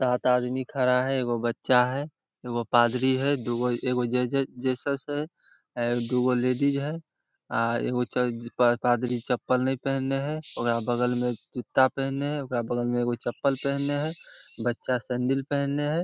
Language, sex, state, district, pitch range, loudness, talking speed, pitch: Maithili, male, Bihar, Samastipur, 120-135 Hz, -27 LUFS, 155 wpm, 125 Hz